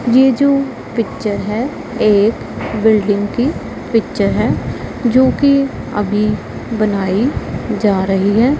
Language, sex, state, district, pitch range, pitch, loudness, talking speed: Hindi, female, Punjab, Pathankot, 205-260 Hz, 220 Hz, -15 LUFS, 105 wpm